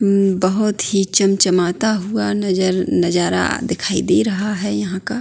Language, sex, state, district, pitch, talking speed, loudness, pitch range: Hindi, female, Uttarakhand, Tehri Garhwal, 195 Hz, 140 wpm, -17 LUFS, 185-210 Hz